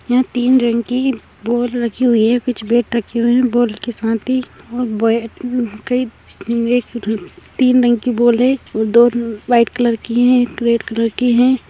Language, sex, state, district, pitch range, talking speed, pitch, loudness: Hindi, female, Uttar Pradesh, Gorakhpur, 230-250 Hz, 165 wpm, 240 Hz, -16 LUFS